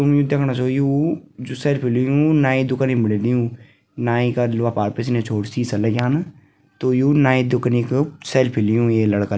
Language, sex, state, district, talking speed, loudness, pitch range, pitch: Garhwali, female, Uttarakhand, Tehri Garhwal, 200 wpm, -19 LUFS, 115-140 Hz, 125 Hz